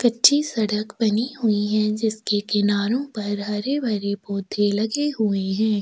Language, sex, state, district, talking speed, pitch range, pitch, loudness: Hindi, female, Chhattisgarh, Sukma, 135 wpm, 205-230 Hz, 215 Hz, -22 LUFS